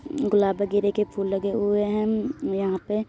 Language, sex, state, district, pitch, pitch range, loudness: Hindi, female, Uttar Pradesh, Hamirpur, 205 Hz, 200-215 Hz, -24 LUFS